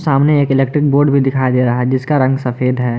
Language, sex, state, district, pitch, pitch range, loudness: Hindi, male, Jharkhand, Garhwa, 135 Hz, 125-145 Hz, -14 LUFS